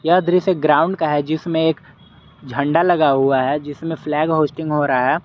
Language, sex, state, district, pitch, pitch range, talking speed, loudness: Hindi, male, Jharkhand, Garhwa, 155 Hz, 145-165 Hz, 195 wpm, -18 LUFS